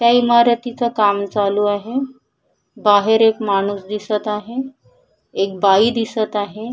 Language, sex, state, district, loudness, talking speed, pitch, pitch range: Marathi, female, Maharashtra, Chandrapur, -17 LUFS, 125 wpm, 215 Hz, 205-235 Hz